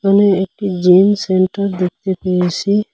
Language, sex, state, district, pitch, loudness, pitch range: Bengali, male, Assam, Hailakandi, 190 Hz, -15 LUFS, 185-200 Hz